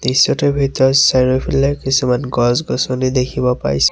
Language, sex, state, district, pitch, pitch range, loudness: Assamese, male, Assam, Sonitpur, 130 Hz, 125-135 Hz, -15 LUFS